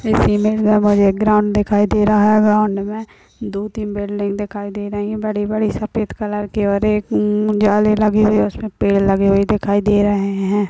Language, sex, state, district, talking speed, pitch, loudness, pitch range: Hindi, female, Uttar Pradesh, Deoria, 220 wpm, 210 Hz, -16 LUFS, 205-215 Hz